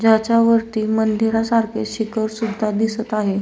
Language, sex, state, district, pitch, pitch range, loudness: Marathi, female, Maharashtra, Solapur, 220 Hz, 215-225 Hz, -19 LUFS